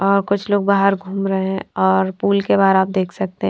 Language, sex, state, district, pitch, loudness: Hindi, female, Punjab, Fazilka, 190 Hz, -17 LUFS